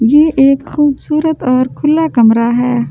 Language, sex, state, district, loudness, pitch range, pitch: Hindi, female, Delhi, New Delhi, -12 LUFS, 240-300 Hz, 275 Hz